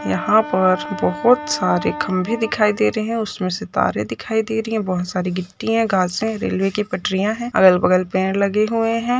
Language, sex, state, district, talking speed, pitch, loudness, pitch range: Hindi, male, Chhattisgarh, Bastar, 200 wpm, 200 Hz, -19 LUFS, 185-225 Hz